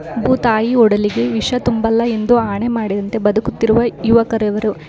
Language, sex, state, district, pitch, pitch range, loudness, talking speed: Kannada, female, Karnataka, Shimoga, 225 Hz, 210-235 Hz, -15 LUFS, 120 wpm